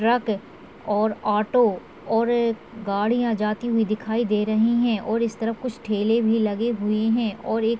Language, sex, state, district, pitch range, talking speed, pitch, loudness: Hindi, female, Chhattisgarh, Raigarh, 215-235 Hz, 170 wpm, 225 Hz, -23 LUFS